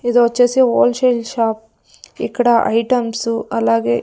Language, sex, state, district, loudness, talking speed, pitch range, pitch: Telugu, female, Andhra Pradesh, Sri Satya Sai, -16 LUFS, 120 wpm, 225-245 Hz, 235 Hz